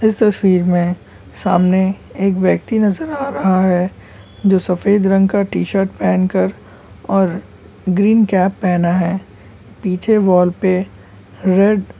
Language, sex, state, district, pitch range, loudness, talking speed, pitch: Hindi, male, West Bengal, Kolkata, 175-195 Hz, -15 LUFS, 140 wpm, 185 Hz